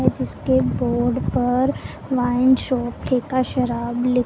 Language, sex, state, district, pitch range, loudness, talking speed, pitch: Hindi, female, Punjab, Pathankot, 235-255 Hz, -21 LUFS, 110 wpm, 245 Hz